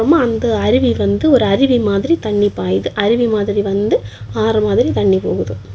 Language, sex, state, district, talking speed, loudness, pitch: Tamil, female, Tamil Nadu, Kanyakumari, 155 wpm, -15 LUFS, 205 Hz